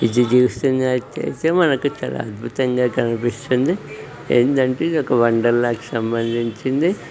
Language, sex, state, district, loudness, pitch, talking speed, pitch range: Telugu, female, Telangana, Nalgonda, -19 LUFS, 125 Hz, 120 wpm, 120-135 Hz